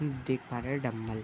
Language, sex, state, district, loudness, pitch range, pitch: Hindi, male, Uttar Pradesh, Budaun, -34 LUFS, 115-135 Hz, 125 Hz